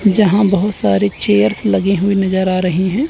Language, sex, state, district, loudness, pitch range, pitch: Hindi, male, Chandigarh, Chandigarh, -14 LUFS, 180-200 Hz, 190 Hz